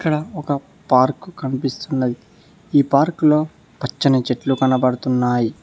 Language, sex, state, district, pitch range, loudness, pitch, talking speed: Telugu, male, Telangana, Mahabubabad, 125-150 Hz, -19 LUFS, 135 Hz, 95 wpm